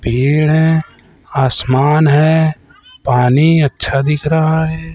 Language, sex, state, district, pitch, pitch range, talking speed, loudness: Hindi, male, Chhattisgarh, Raipur, 150 Hz, 135-160 Hz, 110 wpm, -13 LUFS